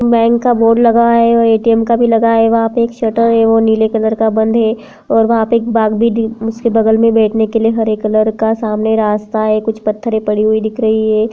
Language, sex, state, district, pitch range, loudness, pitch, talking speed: Hindi, female, Uttarakhand, Uttarkashi, 220-230 Hz, -12 LUFS, 225 Hz, 255 wpm